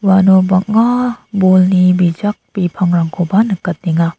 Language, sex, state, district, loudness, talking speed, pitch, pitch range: Garo, female, Meghalaya, South Garo Hills, -13 LUFS, 85 wpm, 185 Hz, 180-205 Hz